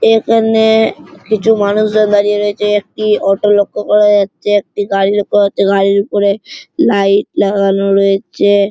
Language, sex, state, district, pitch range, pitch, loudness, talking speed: Bengali, male, West Bengal, Malda, 200-210 Hz, 205 Hz, -12 LUFS, 130 wpm